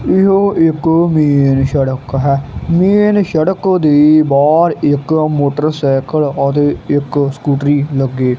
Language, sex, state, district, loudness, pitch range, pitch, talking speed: Punjabi, male, Punjab, Kapurthala, -12 LUFS, 140-160 Hz, 145 Hz, 120 wpm